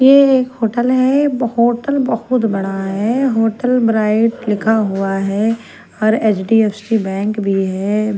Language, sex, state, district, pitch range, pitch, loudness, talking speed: Hindi, female, Delhi, New Delhi, 205-245 Hz, 220 Hz, -15 LUFS, 130 wpm